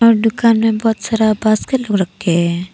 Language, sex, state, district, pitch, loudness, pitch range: Hindi, female, Arunachal Pradesh, Papum Pare, 220 Hz, -15 LUFS, 190-225 Hz